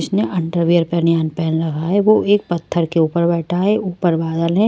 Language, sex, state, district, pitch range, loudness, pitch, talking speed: Hindi, female, Maharashtra, Mumbai Suburban, 165-185 Hz, -17 LUFS, 170 Hz, 165 wpm